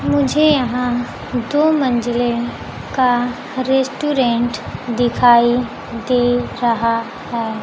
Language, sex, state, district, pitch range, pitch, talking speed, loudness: Hindi, female, Bihar, Kaimur, 235-260 Hz, 245 Hz, 80 wpm, -17 LUFS